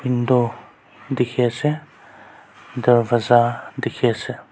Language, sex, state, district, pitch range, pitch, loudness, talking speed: Nagamese, male, Nagaland, Kohima, 120-130 Hz, 125 Hz, -20 LUFS, 80 wpm